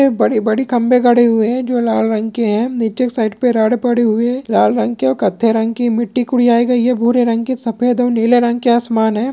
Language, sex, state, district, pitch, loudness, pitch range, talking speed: Hindi, male, West Bengal, Purulia, 235 Hz, -14 LUFS, 225-245 Hz, 255 wpm